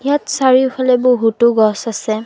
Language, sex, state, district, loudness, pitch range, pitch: Assamese, female, Assam, Kamrup Metropolitan, -14 LUFS, 220-260 Hz, 245 Hz